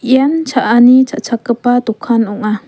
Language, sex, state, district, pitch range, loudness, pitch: Garo, female, Meghalaya, West Garo Hills, 225-260 Hz, -12 LUFS, 245 Hz